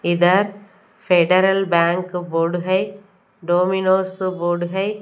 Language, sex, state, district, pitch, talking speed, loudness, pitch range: Hindi, female, Punjab, Kapurthala, 185 Hz, 95 wpm, -18 LUFS, 175-195 Hz